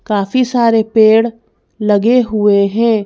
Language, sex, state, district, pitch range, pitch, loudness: Hindi, female, Madhya Pradesh, Bhopal, 210-230 Hz, 220 Hz, -12 LUFS